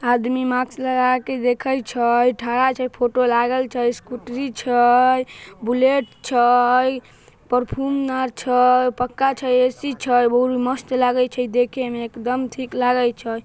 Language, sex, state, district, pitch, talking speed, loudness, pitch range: Maithili, female, Bihar, Samastipur, 250 Hz, 145 wpm, -19 LUFS, 245-255 Hz